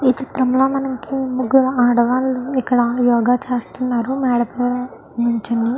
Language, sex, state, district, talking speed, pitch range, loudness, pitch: Telugu, female, Andhra Pradesh, Chittoor, 125 wpm, 240-260 Hz, -18 LUFS, 250 Hz